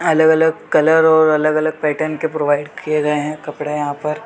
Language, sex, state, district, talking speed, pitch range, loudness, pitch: Hindi, male, Jharkhand, Sahebganj, 255 wpm, 150-160 Hz, -16 LUFS, 155 Hz